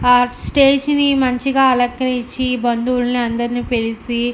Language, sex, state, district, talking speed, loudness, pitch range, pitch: Telugu, female, Andhra Pradesh, Anantapur, 125 wpm, -16 LUFS, 240-260 Hz, 250 Hz